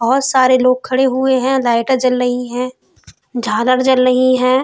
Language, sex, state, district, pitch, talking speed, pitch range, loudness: Hindi, female, Uttar Pradesh, Hamirpur, 255 Hz, 180 wpm, 250-260 Hz, -14 LUFS